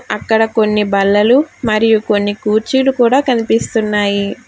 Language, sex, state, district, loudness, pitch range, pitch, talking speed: Telugu, female, Telangana, Hyderabad, -13 LUFS, 210-235 Hz, 220 Hz, 105 wpm